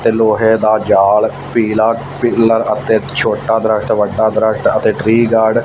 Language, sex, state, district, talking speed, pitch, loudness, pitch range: Punjabi, male, Punjab, Fazilka, 160 wpm, 110 Hz, -13 LUFS, 110-115 Hz